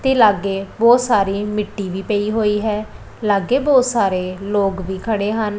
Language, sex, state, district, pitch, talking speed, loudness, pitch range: Punjabi, female, Punjab, Pathankot, 210 Hz, 170 wpm, -18 LUFS, 195-220 Hz